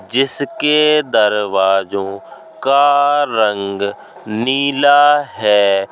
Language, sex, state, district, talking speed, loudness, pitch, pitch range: Hindi, male, Uttar Pradesh, Jalaun, 70 wpm, -14 LUFS, 130 Hz, 100-145 Hz